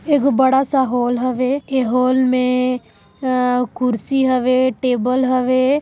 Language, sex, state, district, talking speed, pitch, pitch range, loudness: Chhattisgarhi, female, Chhattisgarh, Sarguja, 135 wpm, 255 Hz, 250-265 Hz, -17 LUFS